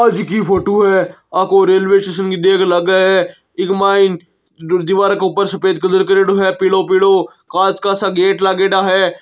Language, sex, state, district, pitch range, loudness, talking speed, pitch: Marwari, male, Rajasthan, Nagaur, 185-195 Hz, -13 LUFS, 195 wpm, 190 Hz